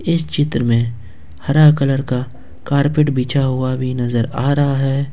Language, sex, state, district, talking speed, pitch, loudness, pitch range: Hindi, male, Jharkhand, Ranchi, 165 wpm, 135 Hz, -17 LUFS, 125-145 Hz